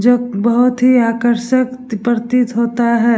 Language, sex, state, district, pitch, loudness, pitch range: Hindi, female, Bihar, Vaishali, 240 Hz, -14 LUFS, 235-250 Hz